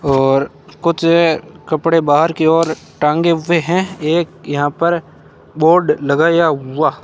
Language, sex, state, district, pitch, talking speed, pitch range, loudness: Hindi, male, Rajasthan, Bikaner, 160 Hz, 135 wpm, 145-170 Hz, -15 LUFS